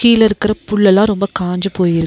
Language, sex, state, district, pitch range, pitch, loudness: Tamil, female, Tamil Nadu, Nilgiris, 185-215 Hz, 200 Hz, -14 LUFS